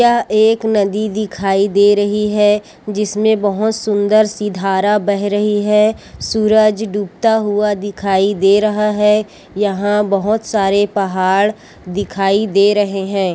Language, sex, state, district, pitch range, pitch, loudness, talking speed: Chhattisgarhi, female, Chhattisgarh, Korba, 200-215 Hz, 205 Hz, -15 LUFS, 135 wpm